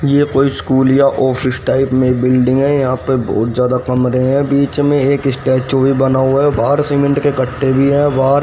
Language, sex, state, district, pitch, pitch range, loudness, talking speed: Hindi, male, Haryana, Rohtak, 135 Hz, 130-140 Hz, -13 LUFS, 215 wpm